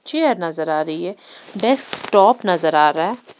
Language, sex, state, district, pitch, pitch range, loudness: Hindi, female, Punjab, Pathankot, 180 Hz, 160-225 Hz, -17 LUFS